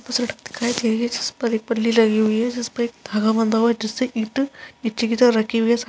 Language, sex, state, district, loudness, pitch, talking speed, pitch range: Hindi, female, Uttarakhand, Tehri Garhwal, -21 LUFS, 230 Hz, 305 wpm, 225-240 Hz